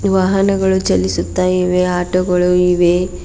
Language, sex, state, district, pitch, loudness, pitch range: Kannada, female, Karnataka, Bidar, 180 Hz, -14 LUFS, 180-190 Hz